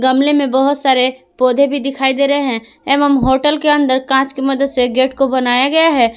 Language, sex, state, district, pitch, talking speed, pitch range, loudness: Hindi, female, Jharkhand, Palamu, 270 Hz, 225 wpm, 260-280 Hz, -13 LUFS